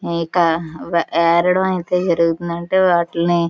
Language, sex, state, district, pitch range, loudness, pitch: Telugu, female, Andhra Pradesh, Visakhapatnam, 170-175 Hz, -17 LUFS, 170 Hz